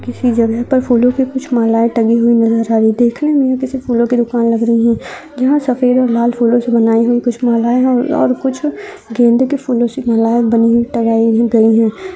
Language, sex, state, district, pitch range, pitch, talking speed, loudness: Hindi, female, Uttarakhand, Tehri Garhwal, 230-255 Hz, 240 Hz, 230 wpm, -13 LUFS